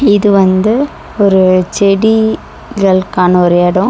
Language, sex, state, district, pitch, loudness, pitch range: Tamil, female, Tamil Nadu, Chennai, 195 Hz, -10 LUFS, 185-215 Hz